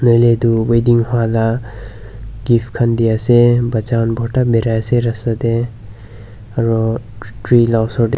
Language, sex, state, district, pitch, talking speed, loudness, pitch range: Nagamese, male, Nagaland, Dimapur, 115 Hz, 130 wpm, -15 LUFS, 110-120 Hz